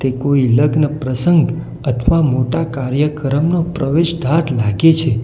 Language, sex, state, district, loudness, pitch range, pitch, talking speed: Gujarati, male, Gujarat, Valsad, -15 LUFS, 130-165 Hz, 145 Hz, 105 wpm